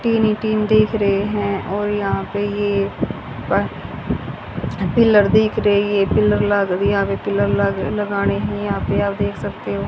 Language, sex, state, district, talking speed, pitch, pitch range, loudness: Hindi, female, Haryana, Charkhi Dadri, 175 wpm, 205 Hz, 180-210 Hz, -19 LUFS